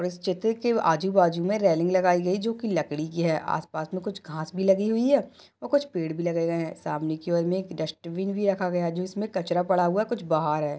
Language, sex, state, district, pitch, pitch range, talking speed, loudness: Hindi, female, Maharashtra, Nagpur, 180 Hz, 165-200 Hz, 260 wpm, -26 LUFS